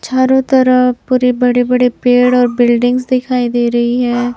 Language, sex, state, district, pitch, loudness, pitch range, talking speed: Hindi, male, Chhattisgarh, Raipur, 250 Hz, -12 LUFS, 245-255 Hz, 165 wpm